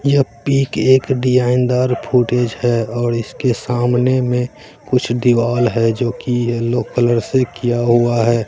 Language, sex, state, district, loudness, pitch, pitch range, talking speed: Hindi, male, Bihar, Katihar, -16 LUFS, 120 Hz, 120-125 Hz, 150 wpm